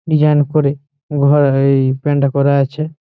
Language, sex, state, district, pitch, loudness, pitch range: Bengali, male, West Bengal, Malda, 145 Hz, -14 LUFS, 140-150 Hz